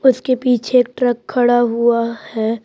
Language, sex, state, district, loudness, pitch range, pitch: Hindi, female, Madhya Pradesh, Bhopal, -16 LUFS, 235-250 Hz, 240 Hz